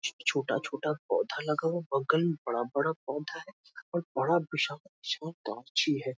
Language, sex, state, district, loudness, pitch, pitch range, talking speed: Hindi, male, Bihar, Muzaffarpur, -32 LUFS, 155 Hz, 135-170 Hz, 165 wpm